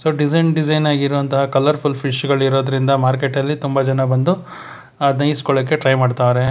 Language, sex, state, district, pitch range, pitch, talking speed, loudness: Kannada, male, Karnataka, Bangalore, 135-150 Hz, 140 Hz, 140 wpm, -17 LUFS